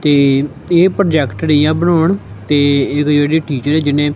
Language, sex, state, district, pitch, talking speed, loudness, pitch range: Punjabi, male, Punjab, Kapurthala, 150 Hz, 175 wpm, -13 LUFS, 145-160 Hz